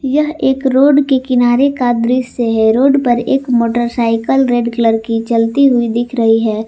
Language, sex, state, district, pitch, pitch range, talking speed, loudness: Hindi, female, Jharkhand, Palamu, 240 Hz, 230-265 Hz, 180 wpm, -13 LUFS